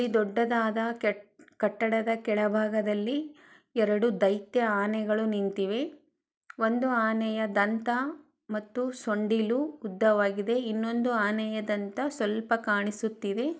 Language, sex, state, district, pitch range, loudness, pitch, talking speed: Kannada, female, Karnataka, Chamarajanagar, 210-240 Hz, -28 LUFS, 220 Hz, 90 wpm